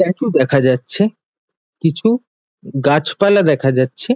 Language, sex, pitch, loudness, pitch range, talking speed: Bengali, male, 160 Hz, -15 LUFS, 135-205 Hz, 100 wpm